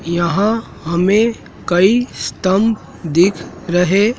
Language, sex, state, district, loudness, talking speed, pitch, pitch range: Hindi, male, Madhya Pradesh, Dhar, -16 LUFS, 85 wpm, 190 Hz, 175-215 Hz